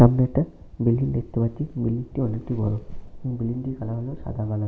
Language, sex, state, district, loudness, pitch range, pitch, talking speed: Bengali, male, West Bengal, Malda, -26 LUFS, 115-130 Hz, 120 Hz, 205 wpm